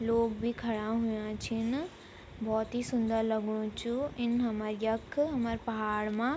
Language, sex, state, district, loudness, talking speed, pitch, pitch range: Garhwali, female, Uttarakhand, Tehri Garhwal, -33 LUFS, 160 wpm, 230 Hz, 220-240 Hz